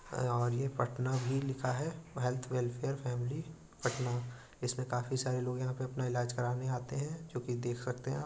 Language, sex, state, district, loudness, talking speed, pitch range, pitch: Hindi, male, Uttar Pradesh, Budaun, -37 LUFS, 180 wpm, 125-135 Hz, 125 Hz